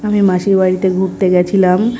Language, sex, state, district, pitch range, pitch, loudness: Bengali, male, West Bengal, North 24 Parganas, 185-195 Hz, 190 Hz, -13 LUFS